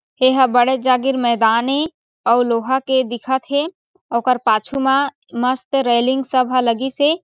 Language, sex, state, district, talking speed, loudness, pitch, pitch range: Chhattisgarhi, female, Chhattisgarh, Sarguja, 175 wpm, -17 LUFS, 260 Hz, 245-270 Hz